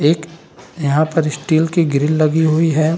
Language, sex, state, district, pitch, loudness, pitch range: Hindi, male, Bihar, Saran, 160 Hz, -16 LUFS, 150-165 Hz